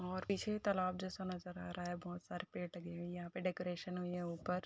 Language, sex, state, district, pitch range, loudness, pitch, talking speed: Hindi, female, Bihar, Darbhanga, 175-185 Hz, -43 LUFS, 180 Hz, 255 wpm